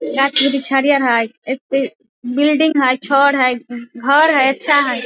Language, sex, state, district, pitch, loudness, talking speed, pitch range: Maithili, female, Bihar, Samastipur, 270 Hz, -14 LUFS, 155 wpm, 255-280 Hz